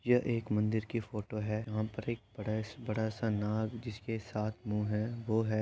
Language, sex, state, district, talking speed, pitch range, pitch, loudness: Hindi, male, Uttar Pradesh, Etah, 205 wpm, 105-115 Hz, 110 Hz, -36 LUFS